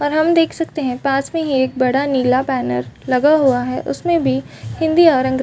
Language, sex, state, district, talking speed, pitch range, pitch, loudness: Hindi, female, Chhattisgarh, Balrampur, 220 wpm, 255-310 Hz, 270 Hz, -17 LUFS